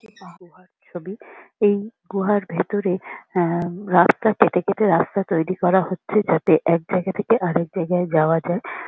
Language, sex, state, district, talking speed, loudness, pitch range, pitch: Bengali, female, West Bengal, Kolkata, 140 wpm, -20 LUFS, 175-205 Hz, 185 Hz